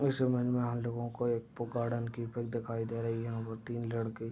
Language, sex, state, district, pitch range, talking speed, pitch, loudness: Hindi, male, Uttar Pradesh, Deoria, 115-120 Hz, 250 wpm, 115 Hz, -35 LUFS